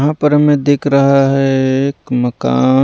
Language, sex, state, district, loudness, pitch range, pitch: Hindi, male, Punjab, Pathankot, -13 LUFS, 125-145 Hz, 135 Hz